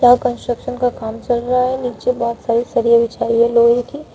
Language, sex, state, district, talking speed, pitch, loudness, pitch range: Hindi, female, Uttar Pradesh, Shamli, 245 wpm, 240 Hz, -16 LUFS, 235-250 Hz